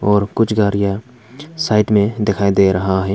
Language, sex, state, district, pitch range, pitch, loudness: Hindi, male, Arunachal Pradesh, Papum Pare, 100-110 Hz, 105 Hz, -16 LUFS